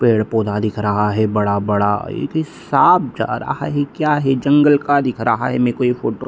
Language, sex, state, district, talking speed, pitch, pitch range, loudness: Hindi, male, Bihar, Darbhanga, 210 wpm, 125 Hz, 105-145 Hz, -17 LUFS